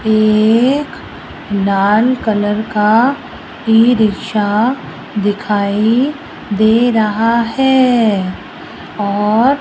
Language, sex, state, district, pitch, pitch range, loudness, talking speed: Hindi, female, Rajasthan, Jaipur, 220 Hz, 210-240 Hz, -13 LUFS, 75 wpm